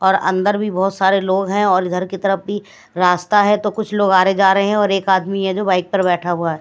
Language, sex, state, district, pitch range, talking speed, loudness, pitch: Hindi, female, Bihar, West Champaran, 185-205 Hz, 290 wpm, -16 LUFS, 195 Hz